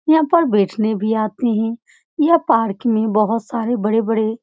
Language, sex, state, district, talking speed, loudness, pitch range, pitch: Hindi, female, Bihar, Supaul, 190 wpm, -17 LUFS, 220-245 Hz, 225 Hz